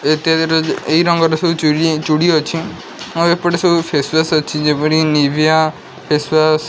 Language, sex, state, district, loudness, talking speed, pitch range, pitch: Odia, male, Odisha, Khordha, -14 LUFS, 150 wpm, 155-165 Hz, 160 Hz